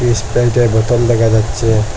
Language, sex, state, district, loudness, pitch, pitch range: Bengali, male, Assam, Hailakandi, -13 LUFS, 115 Hz, 110-120 Hz